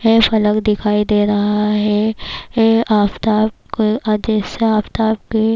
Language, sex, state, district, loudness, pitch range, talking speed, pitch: Urdu, female, Bihar, Kishanganj, -16 LUFS, 210-220 Hz, 130 wpm, 215 Hz